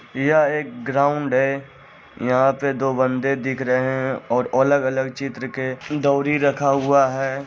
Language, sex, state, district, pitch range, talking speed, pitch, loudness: Hindi, male, Bihar, Jamui, 130-140 Hz, 155 wpm, 135 Hz, -20 LUFS